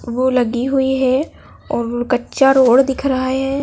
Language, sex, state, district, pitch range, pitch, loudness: Hindi, female, Madhya Pradesh, Dhar, 250-270 Hz, 260 Hz, -16 LUFS